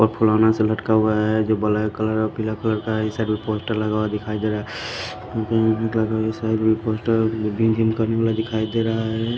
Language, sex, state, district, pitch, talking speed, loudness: Hindi, male, Himachal Pradesh, Shimla, 110 Hz, 225 wpm, -21 LUFS